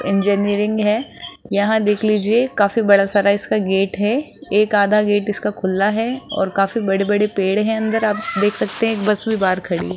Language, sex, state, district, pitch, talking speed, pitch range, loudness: Hindi, female, Rajasthan, Jaipur, 210 Hz, 190 wpm, 200-220 Hz, -17 LUFS